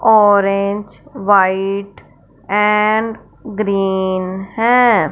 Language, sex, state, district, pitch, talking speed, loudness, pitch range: Hindi, female, Punjab, Fazilka, 200 Hz, 60 wpm, -15 LUFS, 195-215 Hz